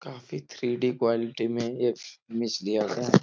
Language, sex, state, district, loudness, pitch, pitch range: Hindi, male, Uttar Pradesh, Etah, -28 LUFS, 115 Hz, 115-120 Hz